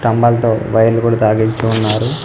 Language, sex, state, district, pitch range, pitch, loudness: Telugu, male, Telangana, Mahabubabad, 110-115 Hz, 115 Hz, -14 LUFS